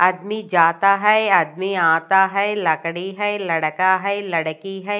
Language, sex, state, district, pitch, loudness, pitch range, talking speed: Hindi, female, Odisha, Nuapada, 190 Hz, -18 LUFS, 165-200 Hz, 145 wpm